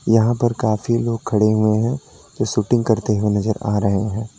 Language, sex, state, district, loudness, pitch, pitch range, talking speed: Hindi, male, Uttar Pradesh, Lalitpur, -19 LUFS, 110 Hz, 105-115 Hz, 190 wpm